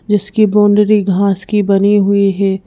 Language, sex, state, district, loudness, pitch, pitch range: Hindi, female, Madhya Pradesh, Bhopal, -12 LUFS, 200 Hz, 195-210 Hz